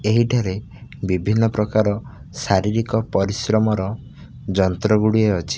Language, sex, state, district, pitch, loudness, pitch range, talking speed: Odia, male, Odisha, Khordha, 110 Hz, -20 LUFS, 100-115 Hz, 95 wpm